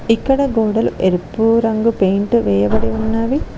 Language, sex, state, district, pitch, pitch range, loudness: Telugu, female, Telangana, Mahabubabad, 225 Hz, 190-230 Hz, -16 LUFS